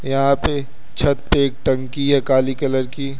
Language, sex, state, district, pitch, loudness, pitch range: Hindi, male, Uttar Pradesh, Lucknow, 135 Hz, -19 LUFS, 130-140 Hz